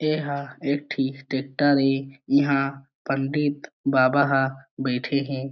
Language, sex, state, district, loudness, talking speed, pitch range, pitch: Chhattisgarhi, male, Chhattisgarh, Jashpur, -24 LUFS, 130 wpm, 135-140 Hz, 135 Hz